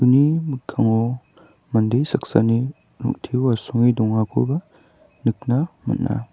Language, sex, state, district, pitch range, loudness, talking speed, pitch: Garo, male, Meghalaya, West Garo Hills, 115-145 Hz, -21 LUFS, 85 wpm, 125 Hz